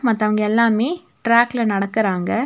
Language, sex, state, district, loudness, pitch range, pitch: Tamil, female, Tamil Nadu, Nilgiris, -18 LUFS, 215-235 Hz, 230 Hz